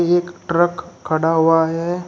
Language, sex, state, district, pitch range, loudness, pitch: Hindi, male, Uttar Pradesh, Shamli, 165-175 Hz, -18 LUFS, 170 Hz